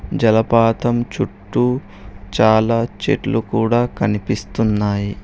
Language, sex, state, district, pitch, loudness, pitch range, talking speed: Telugu, male, Telangana, Hyderabad, 110 Hz, -18 LUFS, 100-120 Hz, 70 wpm